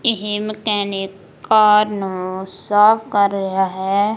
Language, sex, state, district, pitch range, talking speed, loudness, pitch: Punjabi, female, Punjab, Kapurthala, 195-210 Hz, 115 wpm, -17 LUFS, 205 Hz